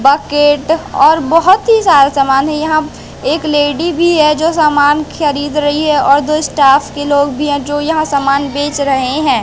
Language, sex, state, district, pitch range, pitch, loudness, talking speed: Hindi, female, Madhya Pradesh, Katni, 285-310 Hz, 295 Hz, -11 LUFS, 190 wpm